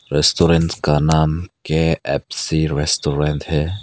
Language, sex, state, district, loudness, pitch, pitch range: Hindi, male, Arunachal Pradesh, Papum Pare, -18 LUFS, 80 Hz, 75-80 Hz